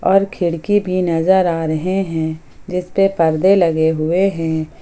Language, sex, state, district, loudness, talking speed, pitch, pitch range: Hindi, female, Jharkhand, Ranchi, -16 LUFS, 150 wpm, 175 Hz, 160-190 Hz